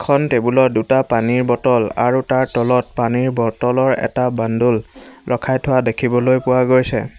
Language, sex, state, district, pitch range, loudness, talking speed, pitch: Assamese, male, Assam, Hailakandi, 120-130 Hz, -16 LUFS, 150 wpm, 125 Hz